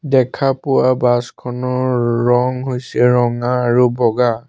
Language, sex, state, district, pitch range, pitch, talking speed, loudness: Assamese, male, Assam, Sonitpur, 120-130 Hz, 125 Hz, 120 wpm, -16 LUFS